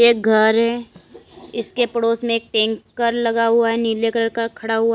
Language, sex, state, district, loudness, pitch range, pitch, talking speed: Hindi, female, Uttar Pradesh, Lalitpur, -18 LUFS, 225-235 Hz, 230 Hz, 180 wpm